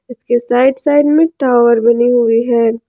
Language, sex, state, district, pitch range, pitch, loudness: Hindi, female, Jharkhand, Ranchi, 235-265 Hz, 240 Hz, -12 LUFS